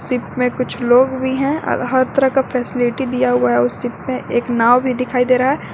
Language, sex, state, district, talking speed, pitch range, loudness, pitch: Hindi, female, Jharkhand, Garhwa, 250 wpm, 245-260 Hz, -17 LUFS, 250 Hz